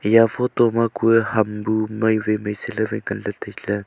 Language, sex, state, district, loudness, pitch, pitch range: Wancho, male, Arunachal Pradesh, Longding, -20 LUFS, 110 Hz, 105-115 Hz